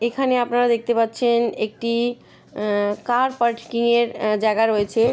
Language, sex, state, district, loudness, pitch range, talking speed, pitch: Bengali, female, West Bengal, Kolkata, -20 LUFS, 220-240 Hz, 130 wpm, 235 Hz